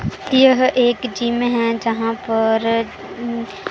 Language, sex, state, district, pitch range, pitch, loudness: Hindi, female, Punjab, Pathankot, 230-245 Hz, 235 Hz, -18 LUFS